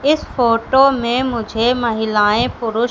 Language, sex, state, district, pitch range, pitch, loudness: Hindi, female, Madhya Pradesh, Katni, 225-255 Hz, 235 Hz, -16 LUFS